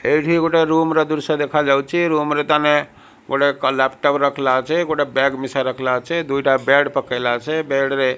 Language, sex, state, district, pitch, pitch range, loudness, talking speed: Odia, male, Odisha, Malkangiri, 140 Hz, 135-155 Hz, -18 LUFS, 65 wpm